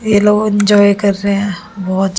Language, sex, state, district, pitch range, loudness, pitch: Hindi, female, Delhi, New Delhi, 195-210 Hz, -13 LUFS, 200 Hz